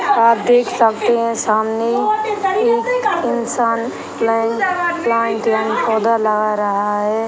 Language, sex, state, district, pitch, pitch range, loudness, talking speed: Hindi, female, Uttar Pradesh, Gorakhpur, 230 Hz, 220-345 Hz, -16 LUFS, 115 wpm